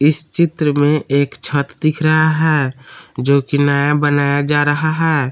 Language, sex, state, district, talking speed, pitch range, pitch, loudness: Hindi, male, Jharkhand, Palamu, 170 wpm, 140-155 Hz, 145 Hz, -15 LUFS